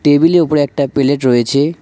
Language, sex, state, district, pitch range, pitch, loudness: Bengali, male, West Bengal, Cooch Behar, 140-155 Hz, 145 Hz, -13 LUFS